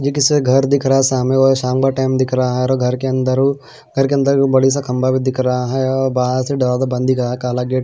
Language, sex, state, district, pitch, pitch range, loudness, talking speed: Hindi, male, Punjab, Pathankot, 130 Hz, 130-135 Hz, -16 LUFS, 235 wpm